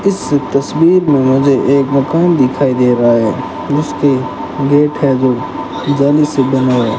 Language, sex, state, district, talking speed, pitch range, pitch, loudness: Hindi, male, Rajasthan, Bikaner, 155 wpm, 130-145 Hz, 140 Hz, -12 LUFS